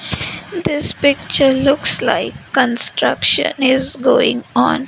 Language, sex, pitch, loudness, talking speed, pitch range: English, female, 270 Hz, -15 LUFS, 100 wpm, 260-275 Hz